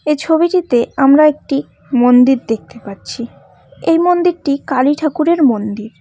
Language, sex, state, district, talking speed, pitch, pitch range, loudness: Bengali, female, West Bengal, Cooch Behar, 120 wpm, 280 Hz, 240-315 Hz, -13 LUFS